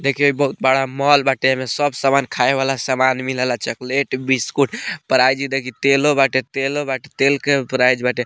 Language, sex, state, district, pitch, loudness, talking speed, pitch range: Bhojpuri, male, Bihar, Muzaffarpur, 135 Hz, -18 LUFS, 175 wpm, 130-140 Hz